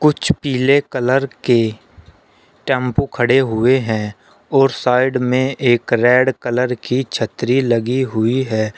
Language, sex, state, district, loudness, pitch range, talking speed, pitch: Hindi, male, Uttar Pradesh, Shamli, -16 LUFS, 120-135 Hz, 130 wpm, 125 Hz